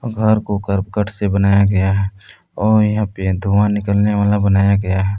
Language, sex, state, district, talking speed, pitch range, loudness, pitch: Hindi, male, Jharkhand, Palamu, 185 wpm, 100-105 Hz, -16 LUFS, 100 Hz